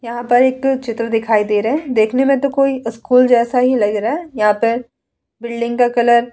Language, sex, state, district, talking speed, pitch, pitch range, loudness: Hindi, female, Bihar, Vaishali, 230 wpm, 240 Hz, 230-255 Hz, -15 LUFS